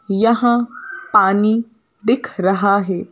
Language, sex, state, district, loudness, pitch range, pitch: Hindi, female, Madhya Pradesh, Bhopal, -17 LUFS, 200-240 Hz, 220 Hz